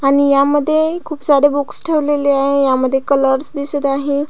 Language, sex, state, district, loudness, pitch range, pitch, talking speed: Marathi, female, Maharashtra, Pune, -15 LUFS, 275-290 Hz, 285 Hz, 165 wpm